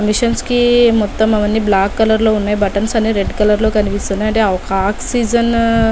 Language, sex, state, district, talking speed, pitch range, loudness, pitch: Telugu, female, Telangana, Nalgonda, 170 wpm, 205-230 Hz, -14 LUFS, 220 Hz